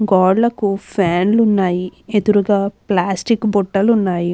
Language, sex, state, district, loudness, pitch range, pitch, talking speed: Telugu, female, Andhra Pradesh, Anantapur, -16 LUFS, 185-215 Hz, 200 Hz, 95 wpm